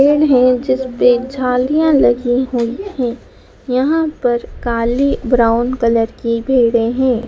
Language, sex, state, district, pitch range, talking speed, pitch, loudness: Hindi, female, Madhya Pradesh, Dhar, 235-265 Hz, 115 wpm, 250 Hz, -15 LUFS